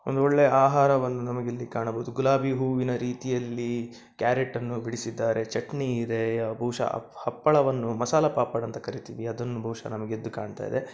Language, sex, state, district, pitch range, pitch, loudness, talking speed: Kannada, male, Karnataka, Dakshina Kannada, 115-130 Hz, 120 Hz, -27 LUFS, 145 wpm